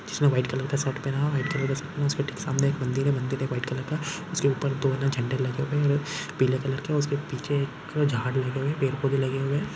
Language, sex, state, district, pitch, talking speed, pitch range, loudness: Hindi, male, Bihar, East Champaran, 140 Hz, 245 wpm, 135-145 Hz, -27 LUFS